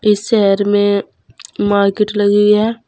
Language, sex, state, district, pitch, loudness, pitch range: Hindi, female, Uttar Pradesh, Saharanpur, 205 Hz, -14 LUFS, 205-210 Hz